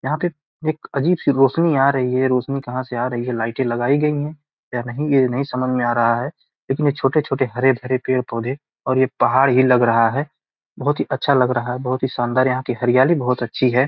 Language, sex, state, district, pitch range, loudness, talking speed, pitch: Hindi, male, Bihar, Gopalganj, 125-140 Hz, -19 LUFS, 235 wpm, 130 Hz